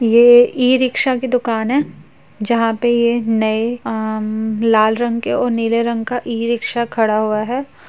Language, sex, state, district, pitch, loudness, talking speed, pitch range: Hindi, female, Uttar Pradesh, Jyotiba Phule Nagar, 235 Hz, -16 LUFS, 160 wpm, 220-240 Hz